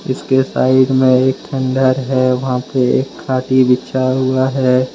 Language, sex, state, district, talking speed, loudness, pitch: Hindi, male, Jharkhand, Deoghar, 170 wpm, -14 LUFS, 130 Hz